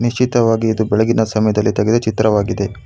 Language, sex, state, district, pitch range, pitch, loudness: Kannada, male, Karnataka, Bangalore, 105-115 Hz, 110 Hz, -15 LUFS